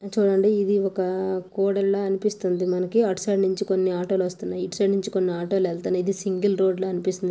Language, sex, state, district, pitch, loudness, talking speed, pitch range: Telugu, female, Andhra Pradesh, Anantapur, 190 Hz, -24 LUFS, 205 wpm, 185-200 Hz